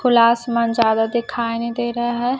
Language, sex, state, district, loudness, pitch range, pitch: Hindi, female, Chhattisgarh, Raipur, -19 LUFS, 230-240 Hz, 235 Hz